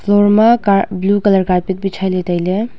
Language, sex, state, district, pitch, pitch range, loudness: Wancho, female, Arunachal Pradesh, Longding, 195 Hz, 185-205 Hz, -14 LUFS